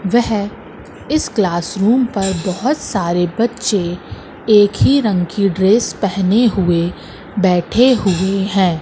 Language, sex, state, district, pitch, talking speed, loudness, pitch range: Hindi, female, Madhya Pradesh, Katni, 195 Hz, 120 wpm, -15 LUFS, 185-220 Hz